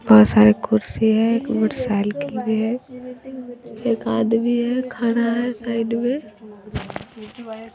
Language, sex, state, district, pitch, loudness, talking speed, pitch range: Hindi, female, Bihar, West Champaran, 230 Hz, -20 LUFS, 125 wpm, 220-245 Hz